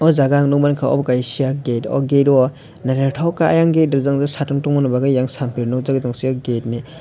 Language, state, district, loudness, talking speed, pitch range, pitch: Kokborok, Tripura, West Tripura, -17 LUFS, 205 wpm, 130-145 Hz, 135 Hz